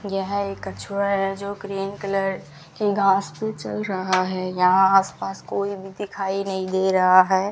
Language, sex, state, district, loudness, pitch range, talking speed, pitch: Hindi, female, Rajasthan, Bikaner, -22 LUFS, 185-200 Hz, 185 wpm, 195 Hz